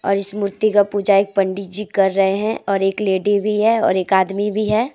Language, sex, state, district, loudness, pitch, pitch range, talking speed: Hindi, female, Jharkhand, Deoghar, -18 LUFS, 200 Hz, 195-210 Hz, 240 wpm